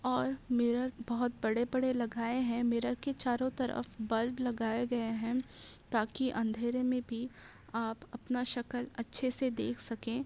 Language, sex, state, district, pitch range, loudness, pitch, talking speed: Hindi, female, Bihar, Bhagalpur, 230-255 Hz, -35 LUFS, 245 Hz, 145 wpm